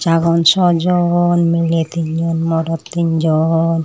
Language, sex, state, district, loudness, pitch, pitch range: Chakma, female, Tripura, Unakoti, -15 LUFS, 165 Hz, 165-170 Hz